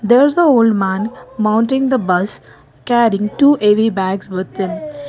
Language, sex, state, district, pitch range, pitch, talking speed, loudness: English, female, Karnataka, Bangalore, 190-260 Hz, 215 Hz, 165 wpm, -15 LUFS